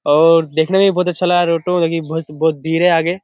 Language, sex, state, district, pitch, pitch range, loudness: Hindi, male, Bihar, Kishanganj, 165 Hz, 160-180 Hz, -15 LUFS